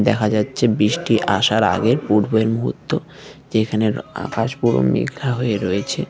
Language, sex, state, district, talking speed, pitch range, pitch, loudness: Bengali, male, West Bengal, Cooch Behar, 130 wpm, 105-115 Hz, 110 Hz, -19 LUFS